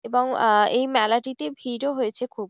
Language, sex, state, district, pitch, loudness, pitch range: Bengali, female, West Bengal, Jhargram, 250 Hz, -22 LUFS, 230-265 Hz